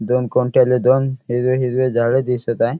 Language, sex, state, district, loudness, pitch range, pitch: Marathi, male, Maharashtra, Chandrapur, -17 LUFS, 125-130 Hz, 125 Hz